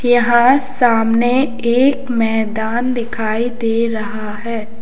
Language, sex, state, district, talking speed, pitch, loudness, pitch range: Hindi, male, Uttar Pradesh, Lalitpur, 100 wpm, 235 Hz, -16 LUFS, 225-245 Hz